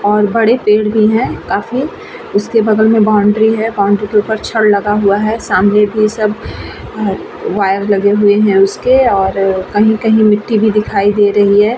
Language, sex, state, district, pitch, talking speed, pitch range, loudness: Hindi, female, Uttar Pradesh, Varanasi, 210 Hz, 180 wpm, 205-220 Hz, -12 LUFS